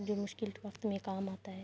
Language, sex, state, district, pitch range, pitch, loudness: Urdu, female, Andhra Pradesh, Anantapur, 195-205 Hz, 200 Hz, -40 LUFS